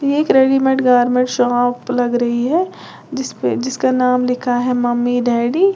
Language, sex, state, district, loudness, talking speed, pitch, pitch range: Hindi, female, Uttar Pradesh, Lalitpur, -16 LUFS, 165 wpm, 250 Hz, 245-265 Hz